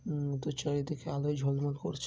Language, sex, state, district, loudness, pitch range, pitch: Bengali, male, West Bengal, Kolkata, -34 LUFS, 140-150 Hz, 145 Hz